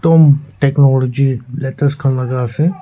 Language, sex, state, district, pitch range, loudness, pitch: Nagamese, male, Nagaland, Kohima, 130-145 Hz, -14 LUFS, 140 Hz